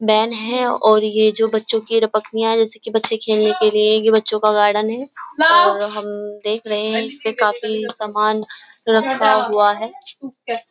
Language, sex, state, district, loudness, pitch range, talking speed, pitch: Hindi, female, Uttar Pradesh, Jyotiba Phule Nagar, -17 LUFS, 215-230 Hz, 175 wpm, 220 Hz